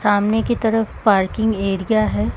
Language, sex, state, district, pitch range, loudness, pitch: Hindi, female, Uttar Pradesh, Lucknow, 195-225 Hz, -18 LUFS, 210 Hz